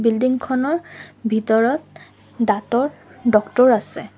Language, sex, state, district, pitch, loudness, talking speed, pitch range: Assamese, female, Assam, Sonitpur, 240 Hz, -19 LUFS, 85 wpm, 220-255 Hz